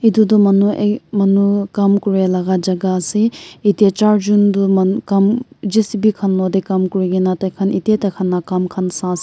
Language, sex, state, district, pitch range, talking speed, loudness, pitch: Nagamese, male, Nagaland, Kohima, 185-210 Hz, 200 wpm, -15 LUFS, 200 Hz